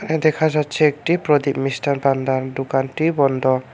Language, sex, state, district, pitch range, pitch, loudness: Bengali, male, Tripura, Unakoti, 135-155 Hz, 140 Hz, -19 LUFS